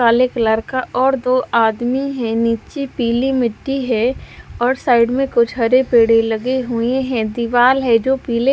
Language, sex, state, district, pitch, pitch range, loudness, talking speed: Hindi, female, Punjab, Fazilka, 245 Hz, 230-260 Hz, -16 LUFS, 170 wpm